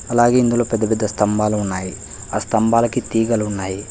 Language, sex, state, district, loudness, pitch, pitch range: Telugu, male, Telangana, Hyderabad, -18 LUFS, 110 Hz, 100-115 Hz